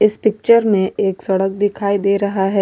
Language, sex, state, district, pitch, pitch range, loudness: Hindi, female, Goa, North and South Goa, 200 Hz, 195-210 Hz, -16 LUFS